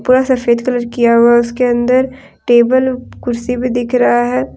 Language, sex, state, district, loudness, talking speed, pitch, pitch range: Hindi, female, Jharkhand, Deoghar, -13 LUFS, 185 wpm, 245 Hz, 235-255 Hz